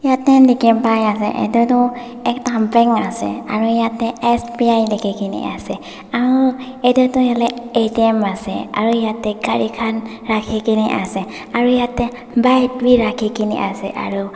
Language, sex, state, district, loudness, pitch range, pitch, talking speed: Nagamese, female, Nagaland, Dimapur, -16 LUFS, 220-245 Hz, 230 Hz, 140 wpm